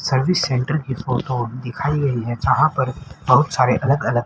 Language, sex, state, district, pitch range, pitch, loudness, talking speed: Hindi, male, Haryana, Rohtak, 125-145 Hz, 130 Hz, -19 LUFS, 185 wpm